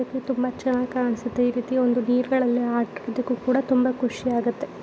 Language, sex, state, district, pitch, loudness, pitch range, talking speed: Kannada, female, Karnataka, Shimoga, 250 Hz, -24 LUFS, 245-255 Hz, 160 wpm